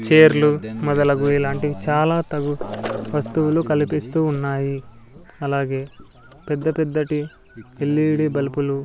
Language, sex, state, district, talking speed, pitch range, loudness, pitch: Telugu, male, Andhra Pradesh, Sri Satya Sai, 90 wpm, 140-155 Hz, -20 LUFS, 145 Hz